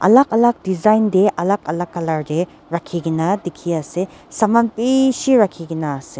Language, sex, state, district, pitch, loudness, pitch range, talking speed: Nagamese, female, Nagaland, Dimapur, 185 Hz, -18 LUFS, 165-220 Hz, 135 wpm